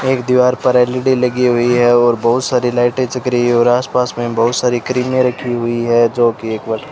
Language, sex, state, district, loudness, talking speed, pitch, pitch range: Hindi, male, Rajasthan, Bikaner, -14 LUFS, 235 wpm, 125 Hz, 120-125 Hz